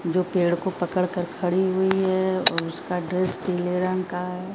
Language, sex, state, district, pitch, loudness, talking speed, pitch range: Hindi, female, Bihar, Kaimur, 180 Hz, -24 LUFS, 195 wpm, 180-185 Hz